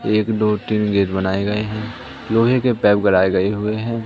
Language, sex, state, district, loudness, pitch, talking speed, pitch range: Hindi, male, Madhya Pradesh, Katni, -18 LUFS, 105 Hz, 205 wpm, 100-115 Hz